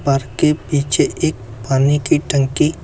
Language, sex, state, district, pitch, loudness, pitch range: Hindi, male, Uttar Pradesh, Lucknow, 140 Hz, -17 LUFS, 135-150 Hz